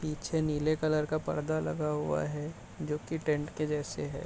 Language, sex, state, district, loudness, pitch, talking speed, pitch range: Hindi, male, Bihar, Bhagalpur, -33 LUFS, 150 Hz, 195 wpm, 145-155 Hz